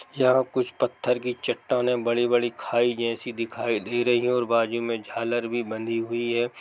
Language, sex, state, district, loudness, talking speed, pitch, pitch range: Hindi, male, Bihar, East Champaran, -25 LUFS, 190 wpm, 120 Hz, 115-125 Hz